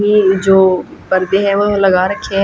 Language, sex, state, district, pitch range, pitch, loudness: Hindi, female, Haryana, Jhajjar, 190-200 Hz, 195 Hz, -13 LUFS